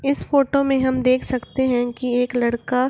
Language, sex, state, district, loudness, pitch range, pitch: Hindi, female, Bihar, Gopalganj, -20 LUFS, 245-270 Hz, 255 Hz